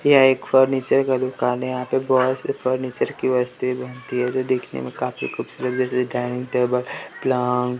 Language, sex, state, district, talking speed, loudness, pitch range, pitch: Hindi, male, Bihar, West Champaran, 190 wpm, -22 LUFS, 125-130 Hz, 125 Hz